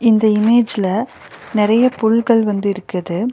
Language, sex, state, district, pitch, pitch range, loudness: Tamil, female, Tamil Nadu, Nilgiris, 220 Hz, 205-235 Hz, -16 LUFS